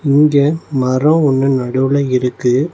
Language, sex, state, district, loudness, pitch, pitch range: Tamil, male, Tamil Nadu, Nilgiris, -14 LUFS, 135 Hz, 130-150 Hz